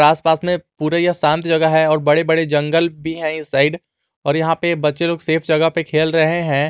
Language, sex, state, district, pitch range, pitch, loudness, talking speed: Hindi, male, Jharkhand, Garhwa, 155-165 Hz, 160 Hz, -17 LUFS, 235 wpm